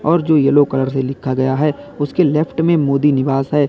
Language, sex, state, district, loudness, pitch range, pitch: Hindi, male, Uttar Pradesh, Lalitpur, -16 LUFS, 135-155 Hz, 145 Hz